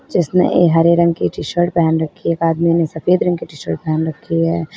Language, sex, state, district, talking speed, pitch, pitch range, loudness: Hindi, female, Uttar Pradesh, Lalitpur, 265 wpm, 170 Hz, 160-175 Hz, -16 LUFS